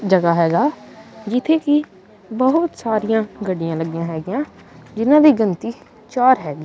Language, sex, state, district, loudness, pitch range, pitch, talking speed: Punjabi, male, Punjab, Kapurthala, -18 LUFS, 180-260 Hz, 220 Hz, 125 wpm